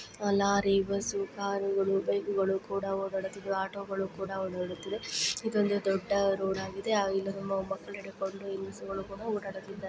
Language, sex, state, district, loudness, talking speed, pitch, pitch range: Kannada, female, Karnataka, Chamarajanagar, -32 LUFS, 135 wpm, 195 Hz, 195-200 Hz